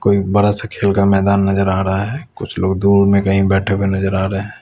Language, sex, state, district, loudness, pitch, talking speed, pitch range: Hindi, male, Bihar, West Champaran, -15 LUFS, 100 Hz, 275 wpm, 95-100 Hz